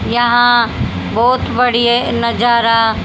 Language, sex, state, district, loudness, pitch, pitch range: Hindi, female, Haryana, Charkhi Dadri, -13 LUFS, 240 Hz, 230-240 Hz